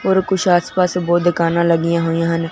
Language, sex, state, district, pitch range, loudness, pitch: Hindi, male, Punjab, Fazilka, 165-180 Hz, -16 LUFS, 175 Hz